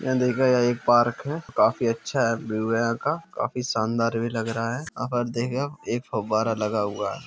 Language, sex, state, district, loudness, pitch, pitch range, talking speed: Hindi, male, Uttar Pradesh, Jalaun, -25 LUFS, 120 Hz, 115-130 Hz, 215 wpm